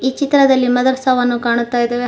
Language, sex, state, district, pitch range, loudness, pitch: Kannada, female, Karnataka, Koppal, 245-260 Hz, -14 LUFS, 250 Hz